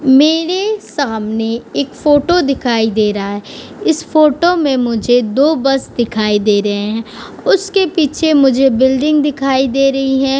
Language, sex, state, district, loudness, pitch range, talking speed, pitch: Hindi, female, Uttar Pradesh, Budaun, -13 LUFS, 230-300 Hz, 150 wpm, 270 Hz